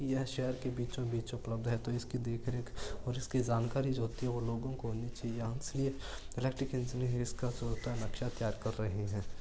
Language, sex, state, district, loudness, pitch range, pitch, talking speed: Marwari, male, Rajasthan, Churu, -38 LUFS, 115-130 Hz, 120 Hz, 165 wpm